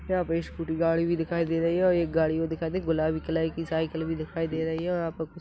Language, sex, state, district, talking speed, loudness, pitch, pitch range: Hindi, male, Chhattisgarh, Rajnandgaon, 300 wpm, -28 LUFS, 165 Hz, 160-170 Hz